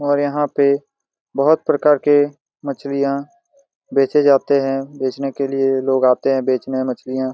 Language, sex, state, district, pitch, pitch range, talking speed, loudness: Hindi, male, Jharkhand, Jamtara, 140 Hz, 135-145 Hz, 155 wpm, -18 LUFS